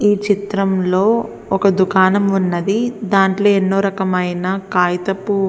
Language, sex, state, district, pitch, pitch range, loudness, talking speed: Telugu, female, Andhra Pradesh, Visakhapatnam, 195 Hz, 190-205 Hz, -16 LUFS, 100 wpm